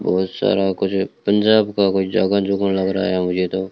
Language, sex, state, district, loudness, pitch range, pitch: Hindi, male, Rajasthan, Bikaner, -18 LUFS, 95-100 Hz, 95 Hz